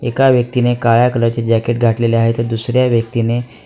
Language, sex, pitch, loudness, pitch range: Marathi, male, 120 Hz, -14 LUFS, 115-120 Hz